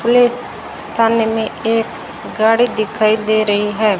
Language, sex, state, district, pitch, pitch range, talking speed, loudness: Hindi, female, Rajasthan, Bikaner, 220 Hz, 215-230 Hz, 135 wpm, -15 LUFS